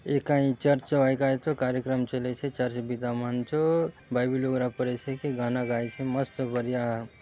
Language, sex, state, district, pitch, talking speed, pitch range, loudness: Halbi, male, Chhattisgarh, Bastar, 130 Hz, 165 wpm, 125-135 Hz, -28 LUFS